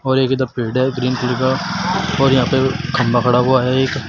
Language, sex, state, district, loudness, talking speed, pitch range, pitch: Hindi, male, Uttar Pradesh, Shamli, -16 LUFS, 235 wpm, 125-135 Hz, 130 Hz